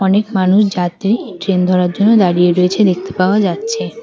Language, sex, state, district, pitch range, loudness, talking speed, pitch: Bengali, female, West Bengal, Cooch Behar, 180-205 Hz, -14 LUFS, 165 wpm, 190 Hz